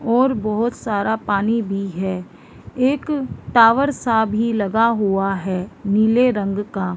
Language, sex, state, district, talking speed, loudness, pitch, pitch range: Hindi, female, Chhattisgarh, Bilaspur, 145 wpm, -19 LUFS, 220 Hz, 200-235 Hz